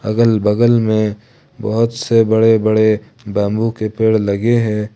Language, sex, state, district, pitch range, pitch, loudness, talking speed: Hindi, male, Jharkhand, Ranchi, 110-115 Hz, 110 Hz, -15 LUFS, 145 wpm